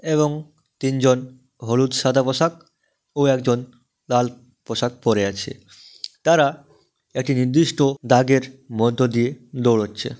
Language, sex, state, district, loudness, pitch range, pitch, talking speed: Bengali, male, West Bengal, Dakshin Dinajpur, -20 LUFS, 120-135 Hz, 130 Hz, 105 wpm